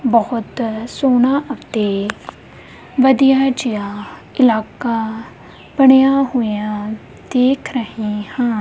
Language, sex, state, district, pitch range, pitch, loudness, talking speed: Punjabi, female, Punjab, Kapurthala, 215-265 Hz, 235 Hz, -16 LUFS, 75 wpm